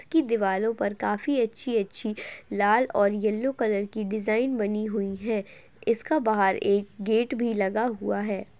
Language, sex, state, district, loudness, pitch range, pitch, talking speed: Hindi, female, Chhattisgarh, Jashpur, -26 LUFS, 205-230 Hz, 215 Hz, 155 wpm